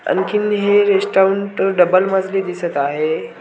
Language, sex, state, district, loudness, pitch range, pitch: Marathi, male, Maharashtra, Washim, -16 LUFS, 180-200 Hz, 190 Hz